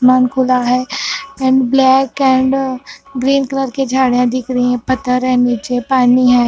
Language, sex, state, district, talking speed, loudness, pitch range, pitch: Hindi, female, Punjab, Fazilka, 165 wpm, -14 LUFS, 250-265 Hz, 255 Hz